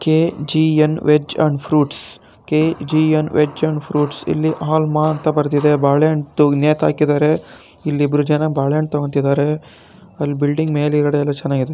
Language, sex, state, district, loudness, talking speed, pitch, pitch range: Kannada, male, Karnataka, Raichur, -17 LUFS, 115 wpm, 150 Hz, 145-155 Hz